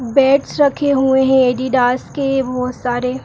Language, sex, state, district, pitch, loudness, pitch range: Kumaoni, female, Uttarakhand, Uttarkashi, 265 Hz, -15 LUFS, 250-270 Hz